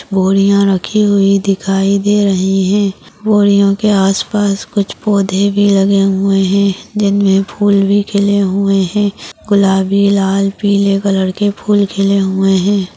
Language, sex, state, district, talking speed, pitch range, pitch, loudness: Hindi, female, Maharashtra, Dhule, 145 wpm, 195-205 Hz, 200 Hz, -12 LUFS